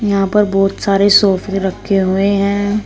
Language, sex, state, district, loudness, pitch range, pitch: Hindi, female, Uttar Pradesh, Shamli, -14 LUFS, 195-205 Hz, 200 Hz